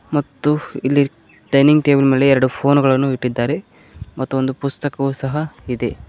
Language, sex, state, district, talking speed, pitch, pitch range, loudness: Kannada, male, Karnataka, Koppal, 140 wpm, 135 Hz, 130-145 Hz, -17 LUFS